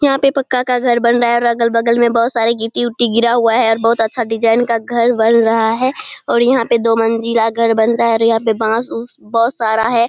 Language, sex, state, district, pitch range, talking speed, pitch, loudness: Hindi, female, Bihar, Kishanganj, 225-240 Hz, 270 wpm, 230 Hz, -14 LUFS